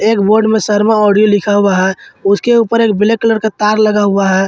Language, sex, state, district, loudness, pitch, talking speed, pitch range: Hindi, male, Jharkhand, Ranchi, -11 LUFS, 210 Hz, 240 wpm, 205-220 Hz